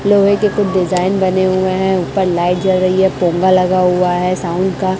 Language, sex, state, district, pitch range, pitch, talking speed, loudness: Hindi, female, Chhattisgarh, Raipur, 180-190 Hz, 185 Hz, 215 wpm, -14 LUFS